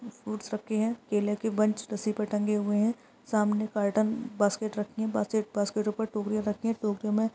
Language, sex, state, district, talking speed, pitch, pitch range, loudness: Hindi, female, Uttar Pradesh, Varanasi, 195 wpm, 215 Hz, 210-220 Hz, -29 LUFS